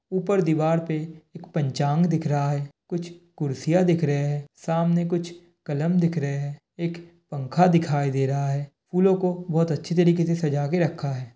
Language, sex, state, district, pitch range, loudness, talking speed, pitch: Hindi, male, Bihar, Kishanganj, 145-175 Hz, -24 LUFS, 190 wpm, 165 Hz